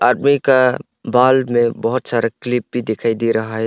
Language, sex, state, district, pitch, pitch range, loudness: Hindi, male, Arunachal Pradesh, Longding, 120 Hz, 115-130 Hz, -16 LUFS